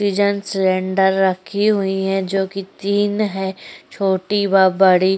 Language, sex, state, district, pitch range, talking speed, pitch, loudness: Hindi, female, Maharashtra, Chandrapur, 190-200 Hz, 115 wpm, 195 Hz, -18 LUFS